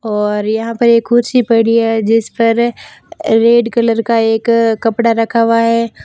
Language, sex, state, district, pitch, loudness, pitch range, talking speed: Hindi, female, Rajasthan, Barmer, 230 Hz, -12 LUFS, 225-235 Hz, 170 wpm